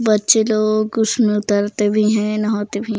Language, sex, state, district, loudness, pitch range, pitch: Chhattisgarhi, female, Chhattisgarh, Raigarh, -17 LUFS, 210-220 Hz, 215 Hz